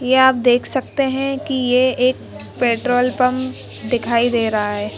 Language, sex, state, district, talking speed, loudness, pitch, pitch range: Hindi, female, Madhya Pradesh, Bhopal, 170 wpm, -17 LUFS, 250 Hz, 240-260 Hz